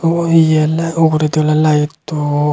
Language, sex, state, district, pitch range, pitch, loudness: Chakma, male, Tripura, Unakoti, 150-165 Hz, 155 Hz, -14 LUFS